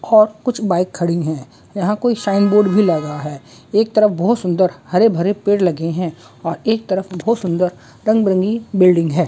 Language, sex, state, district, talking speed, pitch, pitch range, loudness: Hindi, female, West Bengal, Jhargram, 195 wpm, 185 Hz, 170-215 Hz, -17 LUFS